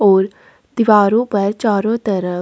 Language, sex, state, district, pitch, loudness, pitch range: Hindi, female, Chhattisgarh, Kabirdham, 205 Hz, -15 LUFS, 195-225 Hz